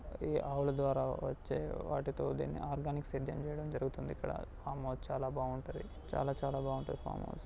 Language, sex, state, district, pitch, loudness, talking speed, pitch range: Telugu, male, Telangana, Karimnagar, 135 Hz, -39 LUFS, 160 wpm, 130-140 Hz